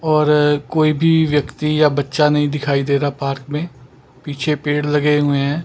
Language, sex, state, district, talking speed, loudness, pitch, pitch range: Hindi, male, Chandigarh, Chandigarh, 180 wpm, -17 LUFS, 150 Hz, 140-150 Hz